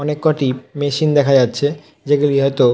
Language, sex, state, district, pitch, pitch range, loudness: Bengali, male, West Bengal, North 24 Parganas, 145 Hz, 135-150 Hz, -16 LUFS